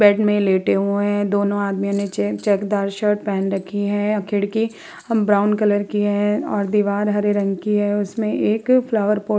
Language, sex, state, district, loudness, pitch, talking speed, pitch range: Hindi, female, Uttar Pradesh, Varanasi, -19 LUFS, 205 Hz, 185 wpm, 200-210 Hz